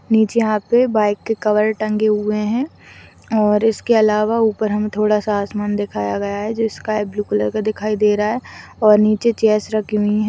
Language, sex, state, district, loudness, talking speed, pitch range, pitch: Hindi, female, Chhattisgarh, Kabirdham, -18 LUFS, 200 wpm, 210-220 Hz, 215 Hz